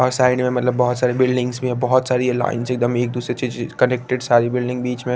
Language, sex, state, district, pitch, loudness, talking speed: Hindi, male, Chandigarh, Chandigarh, 125 Hz, -19 LUFS, 280 wpm